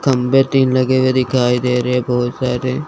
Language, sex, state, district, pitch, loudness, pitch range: Hindi, male, Chandigarh, Chandigarh, 130 Hz, -15 LUFS, 125-130 Hz